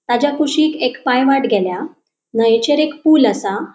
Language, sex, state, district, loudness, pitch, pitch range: Konkani, female, Goa, North and South Goa, -15 LUFS, 275 Hz, 240-305 Hz